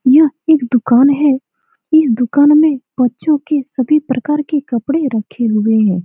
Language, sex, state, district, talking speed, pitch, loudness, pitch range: Hindi, female, Bihar, Saran, 160 wpm, 280 Hz, -13 LUFS, 245-305 Hz